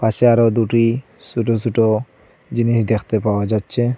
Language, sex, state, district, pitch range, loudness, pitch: Bengali, male, Assam, Hailakandi, 110-115 Hz, -17 LUFS, 115 Hz